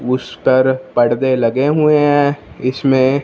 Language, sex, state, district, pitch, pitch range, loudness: Hindi, male, Punjab, Fazilka, 130 Hz, 130-145 Hz, -14 LUFS